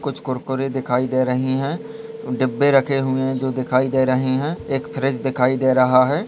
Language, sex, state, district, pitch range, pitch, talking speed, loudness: Hindi, male, Chhattisgarh, Raigarh, 130-135 Hz, 130 Hz, 200 wpm, -20 LUFS